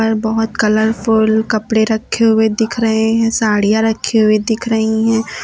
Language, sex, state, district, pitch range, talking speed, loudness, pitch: Hindi, female, Uttar Pradesh, Lucknow, 220-225 Hz, 155 wpm, -14 LUFS, 220 Hz